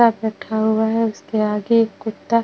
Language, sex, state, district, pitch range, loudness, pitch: Hindi, female, Bihar, Vaishali, 220-230 Hz, -19 LUFS, 220 Hz